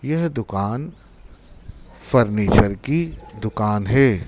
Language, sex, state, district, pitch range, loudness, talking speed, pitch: Hindi, male, Madhya Pradesh, Dhar, 100-135 Hz, -20 LUFS, 85 wpm, 105 Hz